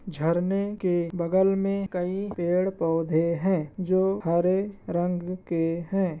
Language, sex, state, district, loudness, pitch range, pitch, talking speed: Hindi, male, Bihar, Madhepura, -26 LUFS, 170-195 Hz, 180 Hz, 115 wpm